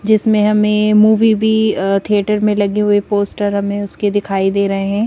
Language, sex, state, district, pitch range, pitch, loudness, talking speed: Hindi, female, Madhya Pradesh, Bhopal, 200-215 Hz, 205 Hz, -14 LUFS, 175 wpm